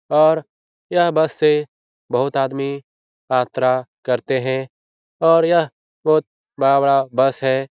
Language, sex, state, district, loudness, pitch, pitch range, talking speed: Hindi, male, Bihar, Jahanabad, -18 LUFS, 135 Hz, 130-155 Hz, 125 wpm